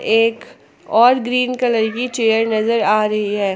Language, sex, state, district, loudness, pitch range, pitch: Hindi, female, Jharkhand, Palamu, -16 LUFS, 215-245 Hz, 225 Hz